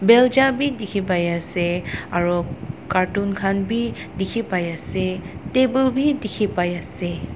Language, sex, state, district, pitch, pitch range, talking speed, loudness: Nagamese, female, Nagaland, Dimapur, 195 Hz, 175-235 Hz, 90 wpm, -21 LUFS